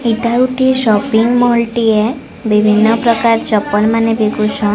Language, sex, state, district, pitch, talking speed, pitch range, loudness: Odia, female, Odisha, Sambalpur, 225 Hz, 165 wpm, 215-235 Hz, -12 LUFS